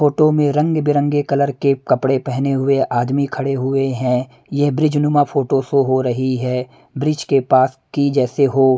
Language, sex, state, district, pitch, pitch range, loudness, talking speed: Hindi, male, Punjab, Pathankot, 140 Hz, 130-145 Hz, -17 LUFS, 185 wpm